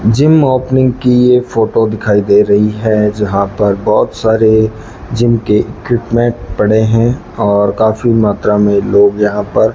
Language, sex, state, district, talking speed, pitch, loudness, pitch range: Hindi, male, Rajasthan, Bikaner, 155 wpm, 110 Hz, -11 LUFS, 105-120 Hz